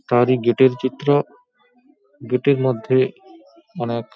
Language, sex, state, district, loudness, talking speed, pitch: Bengali, male, West Bengal, Paschim Medinipur, -19 LUFS, 130 wpm, 130 Hz